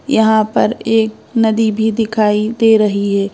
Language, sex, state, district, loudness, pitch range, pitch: Hindi, female, Madhya Pradesh, Bhopal, -14 LUFS, 210-225 Hz, 220 Hz